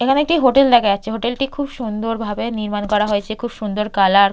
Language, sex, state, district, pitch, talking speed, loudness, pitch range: Bengali, female, West Bengal, Purulia, 220 Hz, 220 wpm, -18 LUFS, 210-250 Hz